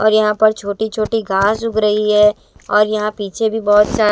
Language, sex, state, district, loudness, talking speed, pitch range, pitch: Hindi, female, Himachal Pradesh, Shimla, -15 LUFS, 220 wpm, 210-215 Hz, 210 Hz